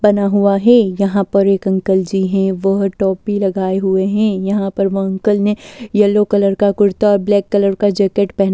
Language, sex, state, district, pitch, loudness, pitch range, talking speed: Hindi, female, Delhi, New Delhi, 200 Hz, -15 LUFS, 195-205 Hz, 215 wpm